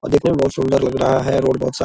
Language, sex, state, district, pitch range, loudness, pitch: Hindi, male, Bihar, Purnia, 130-135 Hz, -17 LUFS, 130 Hz